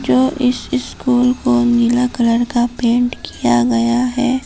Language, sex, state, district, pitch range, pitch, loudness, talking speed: Hindi, female, Jharkhand, Palamu, 235-250 Hz, 245 Hz, -15 LUFS, 150 wpm